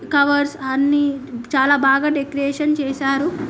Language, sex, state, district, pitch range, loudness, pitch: Telugu, female, Telangana, Nalgonda, 270-290 Hz, -18 LUFS, 280 Hz